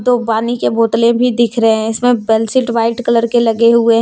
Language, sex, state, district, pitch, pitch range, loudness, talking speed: Hindi, female, Jharkhand, Deoghar, 230 Hz, 225-240 Hz, -13 LUFS, 240 wpm